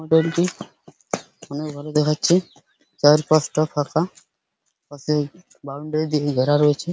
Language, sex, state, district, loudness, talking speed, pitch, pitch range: Bengali, male, West Bengal, Paschim Medinipur, -21 LUFS, 110 wpm, 150 Hz, 145-165 Hz